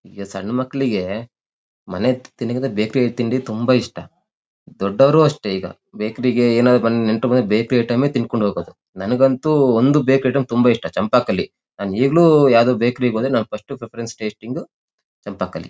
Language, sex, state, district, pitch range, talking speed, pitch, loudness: Kannada, male, Karnataka, Shimoga, 110-130 Hz, 140 wpm, 120 Hz, -18 LUFS